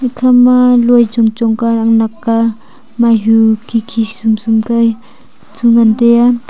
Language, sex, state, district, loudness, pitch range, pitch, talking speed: Wancho, female, Arunachal Pradesh, Longding, -11 LUFS, 225-240 Hz, 230 Hz, 140 wpm